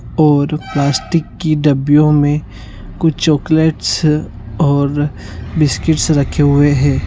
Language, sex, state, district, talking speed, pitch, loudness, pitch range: Hindi, male, Rajasthan, Nagaur, 100 wpm, 145 Hz, -14 LUFS, 140-155 Hz